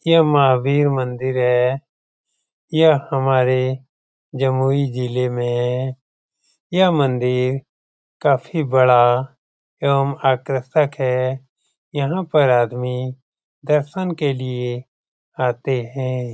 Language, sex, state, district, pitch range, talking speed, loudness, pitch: Hindi, male, Bihar, Jamui, 125-140 Hz, 90 wpm, -19 LUFS, 130 Hz